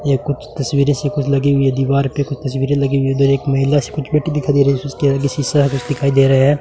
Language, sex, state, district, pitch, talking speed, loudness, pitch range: Hindi, male, Rajasthan, Bikaner, 140 Hz, 300 wpm, -16 LUFS, 135-145 Hz